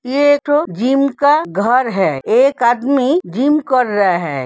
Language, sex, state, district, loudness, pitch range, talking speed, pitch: Hindi, female, Uttar Pradesh, Hamirpur, -14 LUFS, 215-290 Hz, 145 wpm, 260 Hz